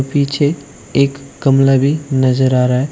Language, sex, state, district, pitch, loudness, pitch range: Hindi, male, Uttar Pradesh, Shamli, 140 Hz, -14 LUFS, 130-140 Hz